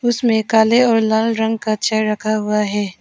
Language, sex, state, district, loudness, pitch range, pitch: Hindi, female, Arunachal Pradesh, Papum Pare, -16 LUFS, 215-225 Hz, 220 Hz